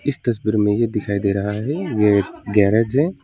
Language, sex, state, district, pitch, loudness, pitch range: Hindi, male, West Bengal, Alipurduar, 105 Hz, -19 LUFS, 105-125 Hz